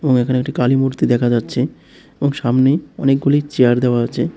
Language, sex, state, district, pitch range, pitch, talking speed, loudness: Bengali, male, Tripura, West Tripura, 120-140 Hz, 130 Hz, 180 wpm, -16 LUFS